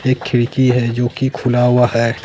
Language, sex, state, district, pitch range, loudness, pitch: Hindi, male, Bihar, Katihar, 120-130 Hz, -15 LUFS, 125 Hz